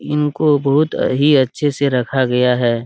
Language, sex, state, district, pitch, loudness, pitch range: Hindi, male, Bihar, Araria, 140 Hz, -15 LUFS, 125-150 Hz